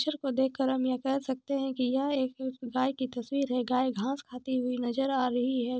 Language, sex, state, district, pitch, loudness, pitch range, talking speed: Hindi, female, Jharkhand, Jamtara, 260 Hz, -30 LUFS, 250-270 Hz, 240 wpm